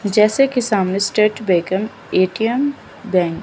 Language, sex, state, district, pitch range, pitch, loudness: Hindi, female, Chandigarh, Chandigarh, 185-225 Hz, 210 Hz, -17 LUFS